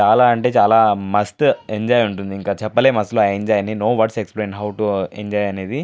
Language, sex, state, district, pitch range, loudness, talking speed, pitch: Telugu, male, Andhra Pradesh, Anantapur, 100-110 Hz, -17 LUFS, 195 wpm, 105 Hz